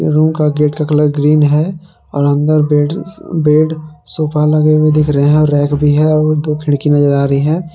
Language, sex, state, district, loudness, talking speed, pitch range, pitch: Hindi, male, Jharkhand, Palamu, -12 LUFS, 215 wpm, 145-155 Hz, 150 Hz